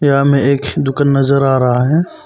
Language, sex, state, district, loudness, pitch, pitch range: Hindi, male, Arunachal Pradesh, Papum Pare, -13 LUFS, 140 Hz, 135-145 Hz